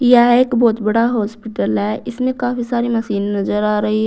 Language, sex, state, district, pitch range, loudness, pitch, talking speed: Hindi, female, Uttar Pradesh, Saharanpur, 210-240 Hz, -17 LUFS, 225 Hz, 205 wpm